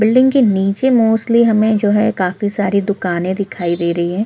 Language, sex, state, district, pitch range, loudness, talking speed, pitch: Hindi, female, Chhattisgarh, Korba, 190-225 Hz, -15 LUFS, 200 wpm, 205 Hz